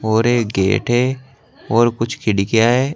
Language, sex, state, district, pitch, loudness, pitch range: Hindi, male, Uttar Pradesh, Saharanpur, 120 Hz, -17 LUFS, 110-125 Hz